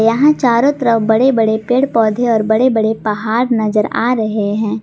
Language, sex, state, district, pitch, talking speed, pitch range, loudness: Hindi, female, Jharkhand, Garhwa, 225 Hz, 185 wpm, 220-245 Hz, -14 LUFS